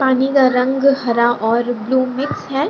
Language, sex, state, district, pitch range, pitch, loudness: Hindi, female, Bihar, Lakhisarai, 240-270 Hz, 260 Hz, -16 LUFS